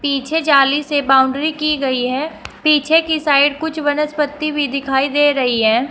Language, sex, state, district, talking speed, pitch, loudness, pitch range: Hindi, female, Uttar Pradesh, Shamli, 175 wpm, 290 Hz, -16 LUFS, 270-305 Hz